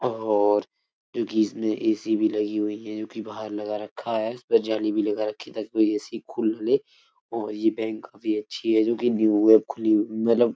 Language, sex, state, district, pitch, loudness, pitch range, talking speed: Hindi, male, Uttar Pradesh, Etah, 110 Hz, -25 LUFS, 105-110 Hz, 225 wpm